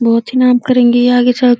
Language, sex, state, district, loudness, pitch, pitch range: Hindi, female, Uttar Pradesh, Deoria, -11 LUFS, 245 Hz, 240-250 Hz